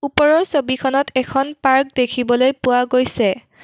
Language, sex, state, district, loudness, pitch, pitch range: Assamese, female, Assam, Kamrup Metropolitan, -17 LUFS, 265 Hz, 250-280 Hz